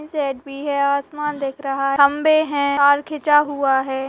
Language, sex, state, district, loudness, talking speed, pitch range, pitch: Hindi, female, Chhattisgarh, Raigarh, -19 LUFS, 190 wpm, 275-295 Hz, 285 Hz